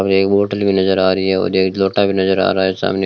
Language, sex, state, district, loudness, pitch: Hindi, male, Rajasthan, Bikaner, -15 LUFS, 95 Hz